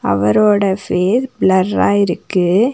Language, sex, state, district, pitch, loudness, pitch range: Tamil, female, Tamil Nadu, Nilgiris, 195 Hz, -14 LUFS, 180-210 Hz